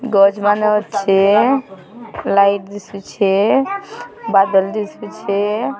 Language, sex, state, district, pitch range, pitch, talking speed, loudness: Odia, female, Odisha, Sambalpur, 195-225 Hz, 205 Hz, 70 wpm, -15 LUFS